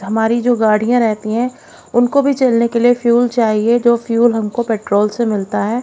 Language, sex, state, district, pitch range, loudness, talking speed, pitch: Hindi, female, Haryana, Jhajjar, 215-240 Hz, -15 LUFS, 195 wpm, 235 Hz